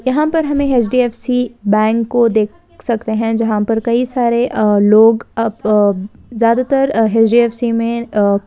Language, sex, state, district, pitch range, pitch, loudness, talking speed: Hindi, female, Uttarakhand, Uttarkashi, 215-245 Hz, 230 Hz, -14 LUFS, 150 wpm